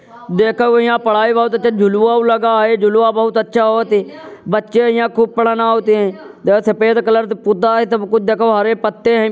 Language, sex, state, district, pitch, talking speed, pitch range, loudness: Hindi, male, Uttar Pradesh, Jyotiba Phule Nagar, 225 Hz, 200 wpm, 215-230 Hz, -14 LUFS